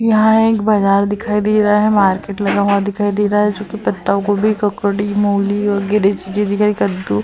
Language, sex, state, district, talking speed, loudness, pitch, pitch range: Hindi, female, Uttar Pradesh, Hamirpur, 185 wpm, -15 LUFS, 205 Hz, 200-210 Hz